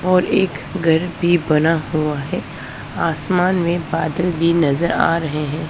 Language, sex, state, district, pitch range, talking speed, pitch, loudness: Hindi, female, Punjab, Pathankot, 155-175 Hz, 160 wpm, 165 Hz, -18 LUFS